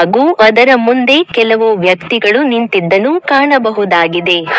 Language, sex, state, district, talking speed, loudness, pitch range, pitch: Kannada, female, Karnataka, Koppal, 90 wpm, -9 LUFS, 185-260 Hz, 225 Hz